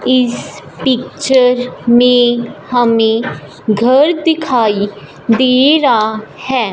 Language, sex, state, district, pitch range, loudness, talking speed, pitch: Hindi, female, Punjab, Fazilka, 225-255 Hz, -12 LUFS, 80 wpm, 245 Hz